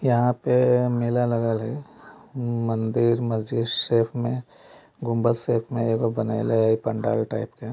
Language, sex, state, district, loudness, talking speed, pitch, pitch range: Bajjika, male, Bihar, Vaishali, -24 LUFS, 140 wpm, 115 Hz, 115-125 Hz